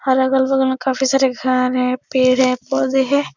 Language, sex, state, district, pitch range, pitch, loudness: Hindi, female, Uttar Pradesh, Etah, 255-270 Hz, 260 Hz, -17 LUFS